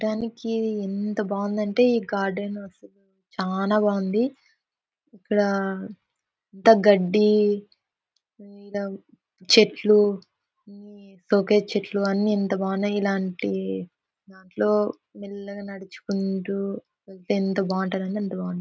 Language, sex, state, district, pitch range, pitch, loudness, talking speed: Telugu, female, Andhra Pradesh, Anantapur, 195-210 Hz, 200 Hz, -23 LUFS, 85 wpm